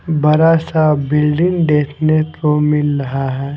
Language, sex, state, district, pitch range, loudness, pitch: Hindi, male, Delhi, New Delhi, 145-155 Hz, -14 LUFS, 150 Hz